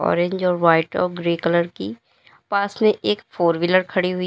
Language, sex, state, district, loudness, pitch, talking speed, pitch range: Hindi, female, Uttar Pradesh, Lalitpur, -20 LUFS, 175 Hz, 195 wpm, 170-185 Hz